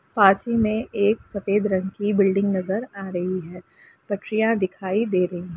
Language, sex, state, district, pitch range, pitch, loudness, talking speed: Hindi, female, Bihar, Jamui, 185-210 Hz, 200 Hz, -23 LUFS, 195 wpm